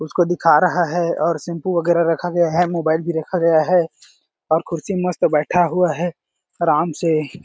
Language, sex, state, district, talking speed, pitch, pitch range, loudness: Hindi, male, Chhattisgarh, Balrampur, 195 wpm, 170 Hz, 160-175 Hz, -18 LUFS